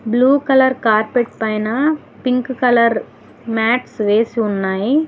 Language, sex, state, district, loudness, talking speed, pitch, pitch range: Telugu, female, Telangana, Hyderabad, -16 LUFS, 105 wpm, 240 Hz, 220-260 Hz